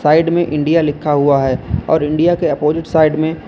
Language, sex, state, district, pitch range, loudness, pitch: Hindi, male, Uttar Pradesh, Lalitpur, 145-165 Hz, -14 LUFS, 155 Hz